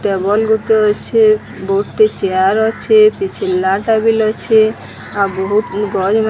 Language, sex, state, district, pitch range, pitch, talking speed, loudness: Odia, female, Odisha, Sambalpur, 195-220 Hz, 215 Hz, 160 wpm, -14 LUFS